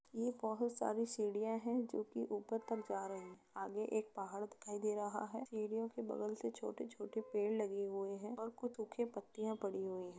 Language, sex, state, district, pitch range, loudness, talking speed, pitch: Hindi, female, Uttar Pradesh, Jalaun, 200-225 Hz, -43 LUFS, 205 wpm, 215 Hz